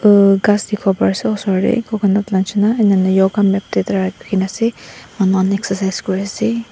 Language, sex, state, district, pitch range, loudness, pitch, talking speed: Nagamese, female, Nagaland, Dimapur, 190-210 Hz, -16 LUFS, 195 Hz, 170 wpm